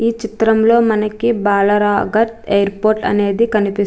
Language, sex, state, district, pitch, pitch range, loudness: Telugu, female, Andhra Pradesh, Chittoor, 215 Hz, 205-225 Hz, -15 LUFS